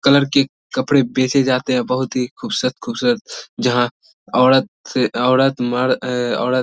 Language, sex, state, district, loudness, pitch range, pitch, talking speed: Hindi, male, Bihar, Samastipur, -18 LUFS, 125-140 Hz, 130 Hz, 155 wpm